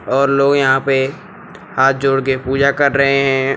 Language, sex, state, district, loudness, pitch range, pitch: Hindi, male, Uttar Pradesh, Lucknow, -14 LUFS, 135-140 Hz, 135 Hz